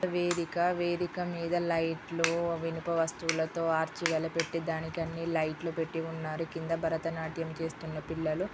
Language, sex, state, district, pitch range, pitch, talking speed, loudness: Telugu, female, Andhra Pradesh, Guntur, 160-170 Hz, 165 Hz, 110 wpm, -32 LUFS